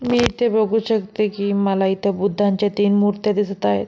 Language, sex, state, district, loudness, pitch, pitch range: Marathi, female, Maharashtra, Solapur, -19 LUFS, 205 Hz, 195-215 Hz